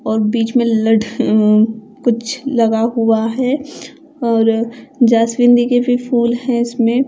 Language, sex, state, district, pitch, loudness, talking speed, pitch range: Hindi, female, Punjab, Fazilka, 235 Hz, -15 LUFS, 145 wpm, 225-245 Hz